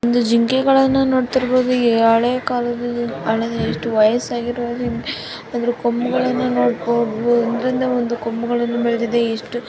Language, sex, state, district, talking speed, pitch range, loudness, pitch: Kannada, female, Karnataka, Dharwad, 85 wpm, 235-250 Hz, -18 LUFS, 240 Hz